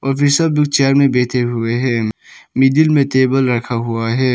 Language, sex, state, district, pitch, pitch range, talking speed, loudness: Hindi, male, Arunachal Pradesh, Papum Pare, 130 Hz, 120-140 Hz, 195 wpm, -15 LUFS